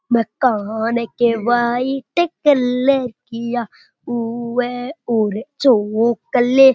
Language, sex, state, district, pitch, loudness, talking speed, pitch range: Rajasthani, male, Rajasthan, Churu, 240 Hz, -18 LUFS, 80 wpm, 230-260 Hz